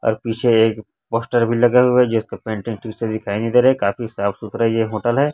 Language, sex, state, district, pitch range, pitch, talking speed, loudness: Hindi, male, Chhattisgarh, Raipur, 110-120 Hz, 115 Hz, 260 wpm, -18 LUFS